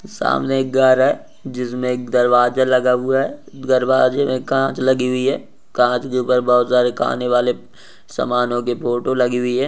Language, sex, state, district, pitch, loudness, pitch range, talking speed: Hindi, male, Rajasthan, Nagaur, 125 Hz, -17 LUFS, 125-130 Hz, 175 wpm